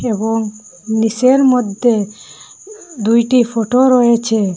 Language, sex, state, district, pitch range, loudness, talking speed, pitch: Bengali, female, Assam, Hailakandi, 220-250 Hz, -14 LUFS, 80 wpm, 230 Hz